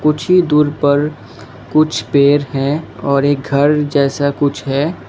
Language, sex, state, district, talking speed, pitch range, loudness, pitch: Hindi, male, Assam, Kamrup Metropolitan, 155 wpm, 140-150 Hz, -14 LUFS, 145 Hz